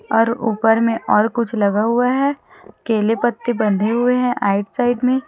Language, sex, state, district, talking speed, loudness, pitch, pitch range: Hindi, female, Chhattisgarh, Raipur, 180 wpm, -18 LUFS, 230 Hz, 220-245 Hz